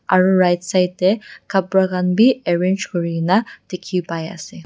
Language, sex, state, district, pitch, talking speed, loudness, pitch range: Nagamese, female, Nagaland, Dimapur, 185 Hz, 165 wpm, -18 LUFS, 175-190 Hz